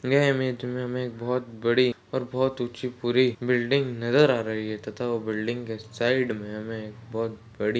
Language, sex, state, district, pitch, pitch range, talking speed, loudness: Hindi, male, Maharashtra, Solapur, 120 Hz, 110-125 Hz, 200 wpm, -26 LUFS